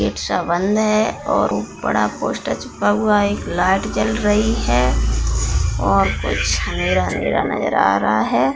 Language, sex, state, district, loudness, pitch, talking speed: Hindi, female, Bihar, Darbhanga, -18 LUFS, 105 Hz, 160 wpm